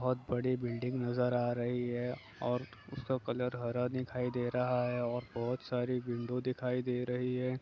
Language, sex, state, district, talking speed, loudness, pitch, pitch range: Hindi, male, Bihar, Jahanabad, 180 wpm, -36 LUFS, 125 Hz, 120-125 Hz